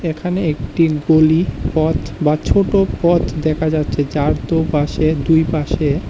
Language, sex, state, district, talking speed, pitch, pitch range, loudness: Bengali, male, Tripura, West Tripura, 135 wpm, 155 Hz, 150-165 Hz, -16 LUFS